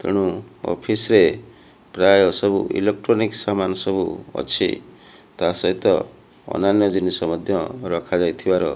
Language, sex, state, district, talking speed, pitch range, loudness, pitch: Odia, male, Odisha, Malkangiri, 110 wpm, 95-100 Hz, -20 LUFS, 100 Hz